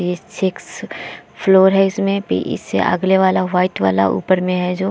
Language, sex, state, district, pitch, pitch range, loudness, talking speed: Hindi, female, Bihar, Vaishali, 185 Hz, 180-190 Hz, -16 LUFS, 195 wpm